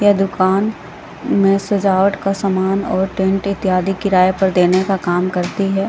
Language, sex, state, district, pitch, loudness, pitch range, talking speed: Hindi, female, Uttar Pradesh, Lalitpur, 195 Hz, -16 LUFS, 185-195 Hz, 155 wpm